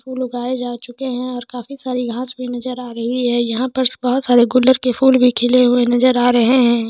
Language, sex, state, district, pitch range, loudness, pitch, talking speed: Hindi, female, Jharkhand, Sahebganj, 245-255 Hz, -16 LUFS, 250 Hz, 210 wpm